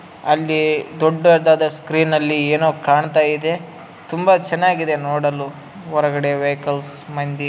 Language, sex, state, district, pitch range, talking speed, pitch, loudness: Kannada, male, Karnataka, Raichur, 145-160 Hz, 105 wpm, 150 Hz, -17 LUFS